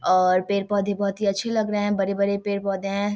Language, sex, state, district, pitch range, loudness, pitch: Maithili, female, Bihar, Samastipur, 195-205 Hz, -23 LUFS, 200 Hz